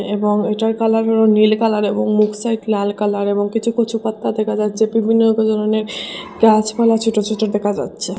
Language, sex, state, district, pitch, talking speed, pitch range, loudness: Bengali, female, Assam, Hailakandi, 215 Hz, 160 wpm, 210-225 Hz, -16 LUFS